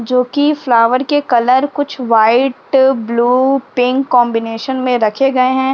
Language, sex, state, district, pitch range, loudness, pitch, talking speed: Hindi, female, Uttar Pradesh, Jyotiba Phule Nagar, 240-270 Hz, -13 LUFS, 255 Hz, 135 wpm